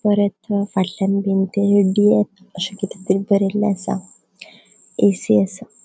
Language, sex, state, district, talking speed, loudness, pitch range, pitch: Konkani, female, Goa, North and South Goa, 90 wpm, -19 LUFS, 185-205 Hz, 195 Hz